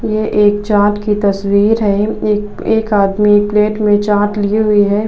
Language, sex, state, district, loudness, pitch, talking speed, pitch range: Hindi, female, Uttar Pradesh, Budaun, -13 LUFS, 210 Hz, 175 wpm, 205-215 Hz